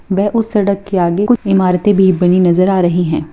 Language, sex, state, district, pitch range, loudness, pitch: Hindi, female, Bihar, Bhagalpur, 180-200 Hz, -13 LUFS, 190 Hz